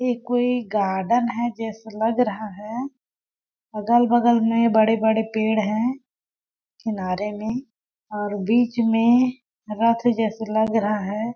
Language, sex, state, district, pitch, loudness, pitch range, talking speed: Hindi, female, Chhattisgarh, Balrampur, 225 Hz, -22 LUFS, 215-240 Hz, 120 wpm